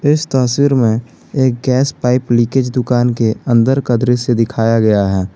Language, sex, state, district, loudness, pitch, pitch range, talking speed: Hindi, male, Jharkhand, Garhwa, -14 LUFS, 125 Hz, 115-130 Hz, 170 wpm